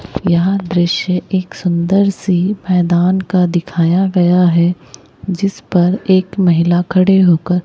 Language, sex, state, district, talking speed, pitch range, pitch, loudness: Hindi, male, Chhattisgarh, Raipur, 125 wpm, 175-190 Hz, 180 Hz, -14 LUFS